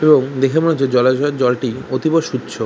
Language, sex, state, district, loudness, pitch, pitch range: Bengali, male, West Bengal, Kolkata, -16 LUFS, 135 Hz, 130-155 Hz